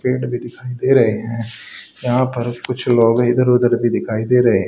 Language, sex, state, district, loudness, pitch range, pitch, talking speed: Hindi, male, Haryana, Charkhi Dadri, -17 LUFS, 115-125 Hz, 120 Hz, 220 wpm